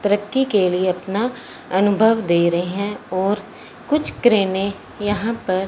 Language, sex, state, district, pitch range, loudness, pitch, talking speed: Hindi, male, Punjab, Fazilka, 190-225 Hz, -19 LUFS, 205 Hz, 145 wpm